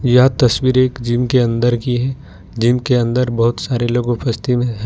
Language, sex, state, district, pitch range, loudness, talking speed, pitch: Hindi, male, Jharkhand, Ranchi, 120-125 Hz, -16 LUFS, 195 wpm, 120 Hz